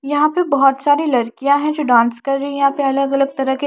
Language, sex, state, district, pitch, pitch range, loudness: Hindi, female, Haryana, Charkhi Dadri, 275 Hz, 270-290 Hz, -16 LUFS